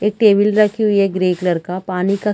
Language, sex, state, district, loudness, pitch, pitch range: Hindi, female, Chhattisgarh, Rajnandgaon, -16 LUFS, 200 Hz, 185-210 Hz